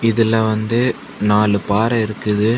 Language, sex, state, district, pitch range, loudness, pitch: Tamil, male, Tamil Nadu, Kanyakumari, 105-115 Hz, -17 LUFS, 110 Hz